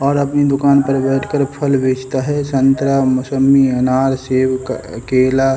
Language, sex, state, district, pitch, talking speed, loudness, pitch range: Hindi, male, Bihar, Samastipur, 135 Hz, 140 wpm, -15 LUFS, 130-140 Hz